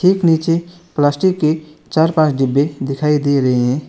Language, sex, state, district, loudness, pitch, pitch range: Hindi, male, West Bengal, Alipurduar, -16 LUFS, 155 Hz, 140-165 Hz